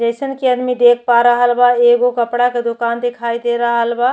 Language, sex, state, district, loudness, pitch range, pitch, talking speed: Bhojpuri, female, Uttar Pradesh, Ghazipur, -14 LUFS, 235-245 Hz, 240 Hz, 220 wpm